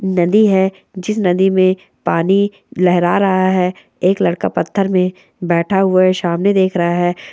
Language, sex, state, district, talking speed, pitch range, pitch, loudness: Hindi, female, Bihar, Darbhanga, 165 wpm, 180-195 Hz, 185 Hz, -15 LUFS